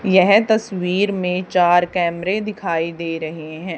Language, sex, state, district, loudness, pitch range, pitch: Hindi, female, Haryana, Charkhi Dadri, -18 LUFS, 170-195 Hz, 180 Hz